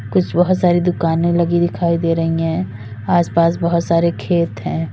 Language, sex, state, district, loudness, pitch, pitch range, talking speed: Hindi, female, Uttar Pradesh, Lalitpur, -17 LUFS, 170 Hz, 165-175 Hz, 185 wpm